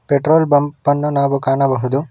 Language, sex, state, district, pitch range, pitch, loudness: Kannada, male, Karnataka, Bangalore, 135-145 Hz, 140 Hz, -16 LUFS